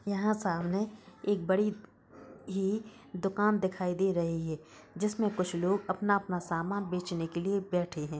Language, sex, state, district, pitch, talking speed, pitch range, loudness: Hindi, female, Bihar, East Champaran, 190 Hz, 145 wpm, 175-205 Hz, -32 LUFS